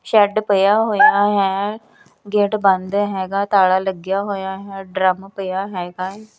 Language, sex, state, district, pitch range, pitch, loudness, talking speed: Punjabi, female, Punjab, Kapurthala, 190-205 Hz, 195 Hz, -18 LUFS, 140 wpm